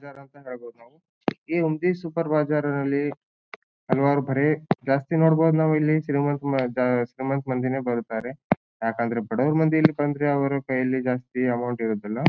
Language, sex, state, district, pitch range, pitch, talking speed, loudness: Kannada, male, Karnataka, Bijapur, 125-155 Hz, 140 Hz, 135 wpm, -24 LUFS